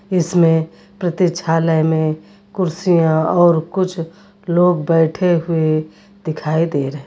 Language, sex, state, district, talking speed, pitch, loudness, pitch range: Hindi, female, Uttar Pradesh, Lucknow, 100 wpm, 165 Hz, -16 LUFS, 160-180 Hz